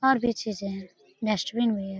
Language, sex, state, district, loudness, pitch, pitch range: Hindi, female, Bihar, Lakhisarai, -28 LUFS, 215 Hz, 195-235 Hz